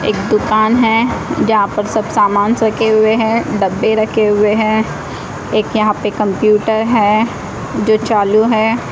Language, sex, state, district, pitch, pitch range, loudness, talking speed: Hindi, female, Odisha, Malkangiri, 215 Hz, 210-220 Hz, -13 LUFS, 150 wpm